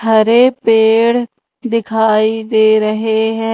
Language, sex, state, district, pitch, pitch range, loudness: Hindi, female, Madhya Pradesh, Umaria, 225 Hz, 220-230 Hz, -12 LUFS